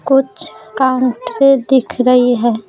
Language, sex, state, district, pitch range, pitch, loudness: Hindi, female, Bihar, Patna, 235-270 Hz, 255 Hz, -13 LUFS